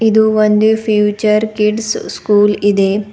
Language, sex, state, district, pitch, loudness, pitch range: Kannada, female, Karnataka, Bidar, 210 Hz, -13 LUFS, 205-220 Hz